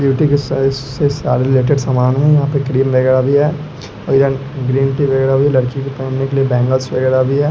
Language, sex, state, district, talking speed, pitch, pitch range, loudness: Hindi, male, Bihar, West Champaran, 230 wpm, 135 Hz, 130-140 Hz, -14 LUFS